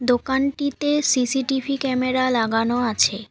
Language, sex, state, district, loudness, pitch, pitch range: Bengali, female, West Bengal, Alipurduar, -21 LUFS, 255 Hz, 245-275 Hz